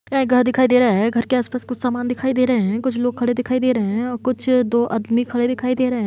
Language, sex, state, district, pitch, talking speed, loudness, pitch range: Hindi, female, Bihar, Kishanganj, 250 Hz, 305 wpm, -19 LUFS, 240-255 Hz